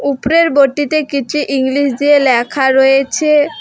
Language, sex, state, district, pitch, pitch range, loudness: Bengali, female, West Bengal, Alipurduar, 280 Hz, 270-295 Hz, -12 LUFS